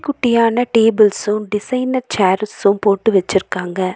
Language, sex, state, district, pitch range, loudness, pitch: Tamil, female, Tamil Nadu, Nilgiris, 195-235 Hz, -16 LUFS, 215 Hz